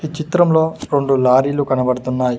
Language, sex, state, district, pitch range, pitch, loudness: Telugu, male, Telangana, Mahabubabad, 130-155 Hz, 140 Hz, -16 LUFS